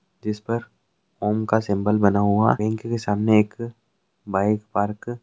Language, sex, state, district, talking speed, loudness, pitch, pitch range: Hindi, male, Andhra Pradesh, Krishna, 150 wpm, -22 LUFS, 105 Hz, 105-115 Hz